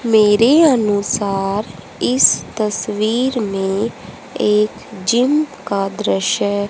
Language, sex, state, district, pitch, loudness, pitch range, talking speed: Hindi, female, Haryana, Jhajjar, 210 Hz, -16 LUFS, 200-235 Hz, 80 wpm